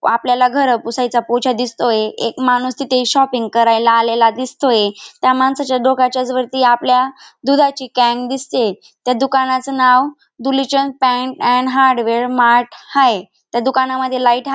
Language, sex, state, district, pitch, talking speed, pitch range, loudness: Marathi, female, Maharashtra, Dhule, 255 Hz, 130 wpm, 240-265 Hz, -15 LUFS